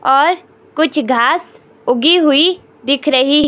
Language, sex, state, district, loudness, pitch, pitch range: Hindi, female, Himachal Pradesh, Shimla, -13 LUFS, 295 Hz, 270-335 Hz